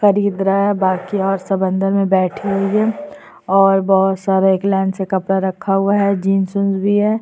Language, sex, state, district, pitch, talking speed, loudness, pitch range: Hindi, female, Chhattisgarh, Sukma, 195 Hz, 205 wpm, -16 LUFS, 190-200 Hz